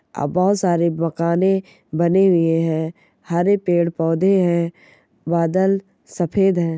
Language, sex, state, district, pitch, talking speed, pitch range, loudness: Hindi, male, Bihar, Sitamarhi, 170 Hz, 135 wpm, 165-190 Hz, -19 LUFS